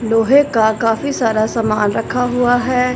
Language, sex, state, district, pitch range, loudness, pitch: Hindi, female, Punjab, Fazilka, 220-250 Hz, -15 LUFS, 230 Hz